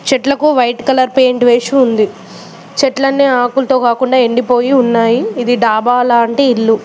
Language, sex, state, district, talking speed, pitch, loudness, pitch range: Telugu, female, Telangana, Mahabubabad, 140 wpm, 245 Hz, -11 LUFS, 235-265 Hz